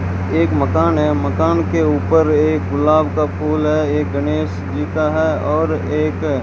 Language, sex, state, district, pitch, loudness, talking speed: Hindi, male, Rajasthan, Bikaner, 95 Hz, -17 LUFS, 150 wpm